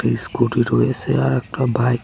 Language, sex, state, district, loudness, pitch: Bengali, male, West Bengal, Cooch Behar, -18 LUFS, 120 Hz